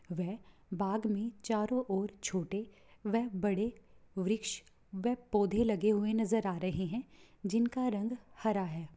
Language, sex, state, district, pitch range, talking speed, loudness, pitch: Hindi, female, Bihar, Begusarai, 195-225 Hz, 140 wpm, -35 LUFS, 210 Hz